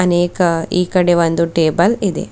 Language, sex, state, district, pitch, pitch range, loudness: Kannada, female, Karnataka, Bidar, 175 Hz, 170-180 Hz, -15 LUFS